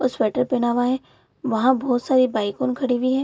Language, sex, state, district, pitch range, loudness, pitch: Hindi, female, Bihar, Bhagalpur, 245-260 Hz, -21 LUFS, 255 Hz